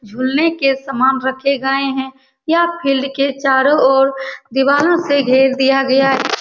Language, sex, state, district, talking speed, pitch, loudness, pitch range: Hindi, female, Bihar, Saran, 170 wpm, 270 Hz, -14 LUFS, 265-275 Hz